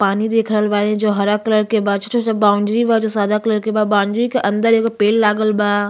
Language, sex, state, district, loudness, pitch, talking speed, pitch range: Bhojpuri, female, Uttar Pradesh, Ghazipur, -16 LUFS, 215 Hz, 235 wpm, 205-225 Hz